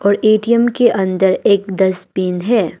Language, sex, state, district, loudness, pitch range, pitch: Hindi, female, Arunachal Pradesh, Papum Pare, -14 LUFS, 190-225 Hz, 200 Hz